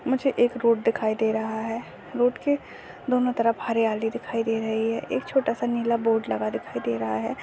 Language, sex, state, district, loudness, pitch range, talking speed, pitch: Hindi, female, Goa, North and South Goa, -25 LUFS, 220-240 Hz, 210 wpm, 230 Hz